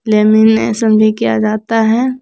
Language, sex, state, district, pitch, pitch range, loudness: Hindi, female, Jharkhand, Palamu, 220 Hz, 215-225 Hz, -12 LUFS